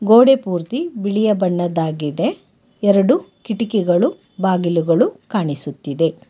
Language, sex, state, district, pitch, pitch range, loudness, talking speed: Kannada, female, Karnataka, Bangalore, 200 Hz, 165-225 Hz, -18 LUFS, 75 wpm